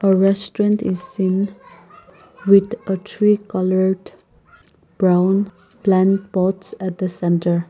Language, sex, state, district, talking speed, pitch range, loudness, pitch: English, female, Nagaland, Kohima, 110 wpm, 185-200 Hz, -18 LUFS, 190 Hz